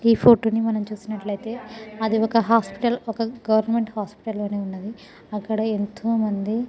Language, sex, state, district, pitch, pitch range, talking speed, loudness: Telugu, female, Telangana, Nalgonda, 220 Hz, 210-230 Hz, 150 wpm, -23 LUFS